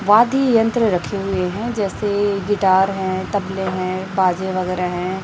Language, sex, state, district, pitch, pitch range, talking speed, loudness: Hindi, female, Chhattisgarh, Raipur, 190 Hz, 185-205 Hz, 150 wpm, -19 LUFS